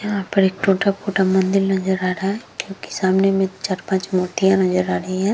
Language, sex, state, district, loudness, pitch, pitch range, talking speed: Hindi, female, Bihar, Vaishali, -19 LUFS, 190 Hz, 185-195 Hz, 235 wpm